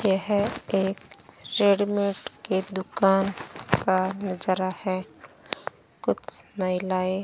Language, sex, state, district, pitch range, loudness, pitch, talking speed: Hindi, female, Rajasthan, Bikaner, 185-200 Hz, -26 LUFS, 190 Hz, 90 wpm